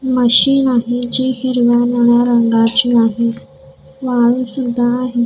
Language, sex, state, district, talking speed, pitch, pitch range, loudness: Marathi, female, Maharashtra, Gondia, 100 wpm, 240 Hz, 240-255 Hz, -14 LUFS